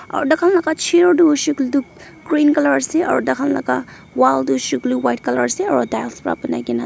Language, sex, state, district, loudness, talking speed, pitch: Nagamese, female, Nagaland, Dimapur, -17 LUFS, 270 wpm, 280 Hz